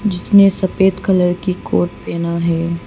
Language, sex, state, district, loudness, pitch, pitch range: Hindi, female, Arunachal Pradesh, Papum Pare, -15 LUFS, 180 Hz, 170-190 Hz